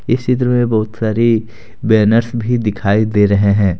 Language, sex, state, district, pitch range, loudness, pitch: Hindi, male, Jharkhand, Deoghar, 105-120 Hz, -14 LUFS, 110 Hz